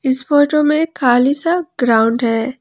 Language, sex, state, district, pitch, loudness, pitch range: Hindi, female, Jharkhand, Ranchi, 265 Hz, -15 LUFS, 245-300 Hz